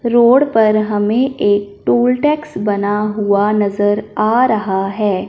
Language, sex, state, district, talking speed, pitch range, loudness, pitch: Hindi, male, Punjab, Fazilka, 135 wpm, 205-235 Hz, -14 LUFS, 210 Hz